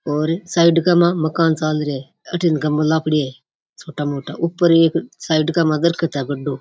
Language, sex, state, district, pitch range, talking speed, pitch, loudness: Rajasthani, female, Rajasthan, Nagaur, 150-170 Hz, 200 wpm, 160 Hz, -18 LUFS